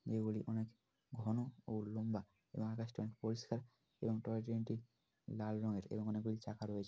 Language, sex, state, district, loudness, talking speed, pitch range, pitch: Bengali, male, West Bengal, Paschim Medinipur, -44 LUFS, 165 wpm, 110-115 Hz, 110 Hz